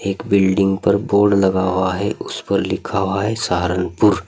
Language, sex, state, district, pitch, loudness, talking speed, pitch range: Hindi, male, Uttar Pradesh, Saharanpur, 95 Hz, -18 LUFS, 170 wpm, 95-100 Hz